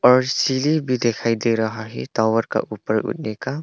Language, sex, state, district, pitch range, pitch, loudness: Hindi, male, Arunachal Pradesh, Longding, 110-130 Hz, 115 Hz, -21 LUFS